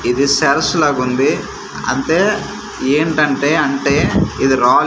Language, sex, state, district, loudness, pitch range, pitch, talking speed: Telugu, male, Andhra Pradesh, Manyam, -15 LUFS, 135-150 Hz, 140 Hz, 100 wpm